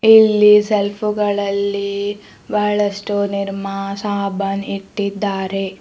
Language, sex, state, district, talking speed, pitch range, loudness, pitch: Kannada, female, Karnataka, Bidar, 80 wpm, 195-210 Hz, -18 LUFS, 200 Hz